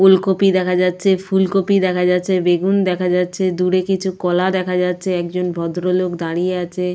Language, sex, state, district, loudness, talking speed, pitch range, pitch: Bengali, female, West Bengal, Jalpaiguri, -17 LUFS, 155 wpm, 180-190 Hz, 180 Hz